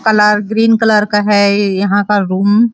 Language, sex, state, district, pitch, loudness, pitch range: Hindi, female, Chhattisgarh, Raigarh, 210 Hz, -12 LUFS, 200-220 Hz